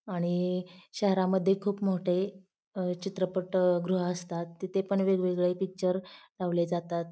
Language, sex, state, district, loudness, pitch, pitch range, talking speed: Marathi, female, Maharashtra, Pune, -30 LUFS, 185 Hz, 180-190 Hz, 120 wpm